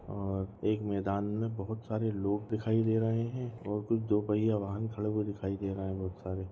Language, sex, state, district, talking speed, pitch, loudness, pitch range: Hindi, male, Goa, North and South Goa, 200 wpm, 105 Hz, -33 LUFS, 100-110 Hz